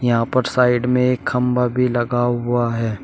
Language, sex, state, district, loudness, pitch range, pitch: Hindi, male, Uttar Pradesh, Shamli, -18 LUFS, 120-125 Hz, 120 Hz